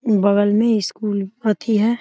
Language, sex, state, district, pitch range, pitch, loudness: Hindi, female, Bihar, Muzaffarpur, 205-225 Hz, 215 Hz, -18 LUFS